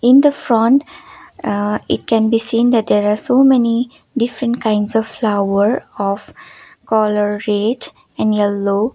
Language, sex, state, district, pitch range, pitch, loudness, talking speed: English, female, Sikkim, Gangtok, 210-245 Hz, 225 Hz, -16 LUFS, 145 wpm